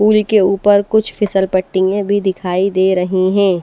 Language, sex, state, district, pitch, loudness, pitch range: Hindi, female, Odisha, Malkangiri, 195 Hz, -14 LUFS, 185-205 Hz